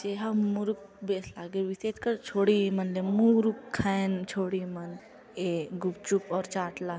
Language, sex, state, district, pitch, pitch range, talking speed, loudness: Chhattisgarhi, female, Chhattisgarh, Jashpur, 195 Hz, 185-205 Hz, 145 wpm, -30 LUFS